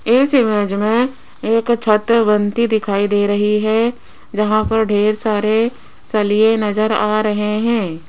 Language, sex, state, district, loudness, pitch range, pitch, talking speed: Hindi, female, Rajasthan, Jaipur, -16 LUFS, 210-230 Hz, 215 Hz, 140 wpm